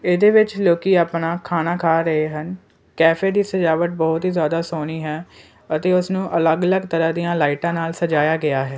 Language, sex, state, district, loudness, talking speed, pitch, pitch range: Punjabi, male, Punjab, Kapurthala, -19 LUFS, 185 wpm, 165 Hz, 160-180 Hz